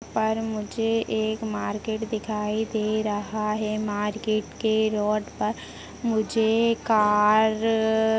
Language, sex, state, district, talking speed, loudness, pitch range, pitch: Hindi, female, Chhattisgarh, Jashpur, 130 wpm, -25 LUFS, 215-220 Hz, 220 Hz